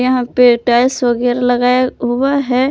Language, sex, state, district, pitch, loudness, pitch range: Hindi, male, Jharkhand, Palamu, 250 Hz, -13 LUFS, 245-255 Hz